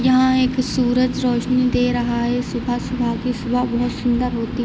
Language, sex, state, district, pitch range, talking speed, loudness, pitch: Hindi, female, Jharkhand, Sahebganj, 240-255 Hz, 195 wpm, -19 LUFS, 245 Hz